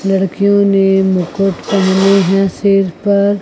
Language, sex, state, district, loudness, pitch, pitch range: Hindi, female, Chandigarh, Chandigarh, -12 LUFS, 195 Hz, 190-200 Hz